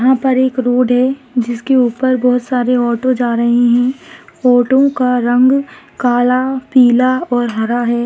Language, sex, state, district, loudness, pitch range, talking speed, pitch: Hindi, female, Maharashtra, Solapur, -13 LUFS, 245-260 Hz, 155 wpm, 250 Hz